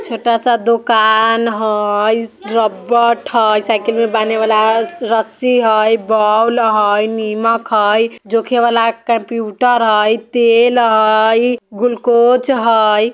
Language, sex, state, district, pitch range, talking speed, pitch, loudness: Bajjika, female, Bihar, Vaishali, 220-235 Hz, 110 wpm, 225 Hz, -13 LUFS